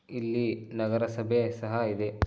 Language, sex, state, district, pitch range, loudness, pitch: Kannada, male, Karnataka, Dharwad, 110-115 Hz, -30 LUFS, 115 Hz